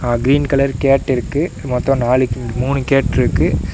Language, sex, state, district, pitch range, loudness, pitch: Tamil, male, Tamil Nadu, Namakkal, 125-135 Hz, -16 LUFS, 130 Hz